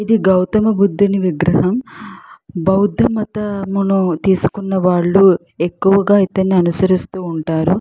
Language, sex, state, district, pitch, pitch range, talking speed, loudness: Telugu, female, Andhra Pradesh, Chittoor, 190 Hz, 180-200 Hz, 90 wpm, -15 LUFS